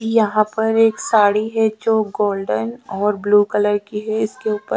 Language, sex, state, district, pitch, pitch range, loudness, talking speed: Hindi, female, Haryana, Charkhi Dadri, 215 Hz, 205-220 Hz, -18 LUFS, 175 wpm